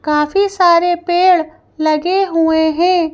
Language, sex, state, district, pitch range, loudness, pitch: Hindi, female, Madhya Pradesh, Bhopal, 320-360 Hz, -13 LUFS, 345 Hz